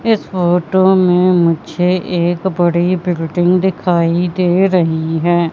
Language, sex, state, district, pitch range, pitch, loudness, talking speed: Hindi, female, Madhya Pradesh, Katni, 170-185 Hz, 175 Hz, -14 LUFS, 120 wpm